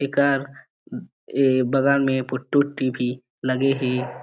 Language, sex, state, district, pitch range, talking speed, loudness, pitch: Chhattisgarhi, male, Chhattisgarh, Jashpur, 130-140 Hz, 115 wpm, -22 LUFS, 130 Hz